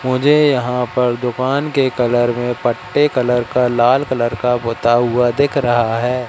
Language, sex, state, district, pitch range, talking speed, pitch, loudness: Hindi, male, Madhya Pradesh, Katni, 120-130 Hz, 170 wpm, 125 Hz, -16 LUFS